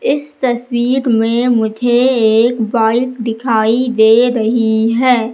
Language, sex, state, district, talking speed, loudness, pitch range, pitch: Hindi, female, Madhya Pradesh, Katni, 110 wpm, -13 LUFS, 225-245 Hz, 235 Hz